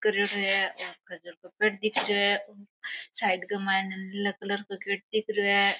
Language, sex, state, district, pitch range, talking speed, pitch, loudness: Rajasthani, female, Rajasthan, Nagaur, 195-205 Hz, 185 wpm, 200 Hz, -28 LUFS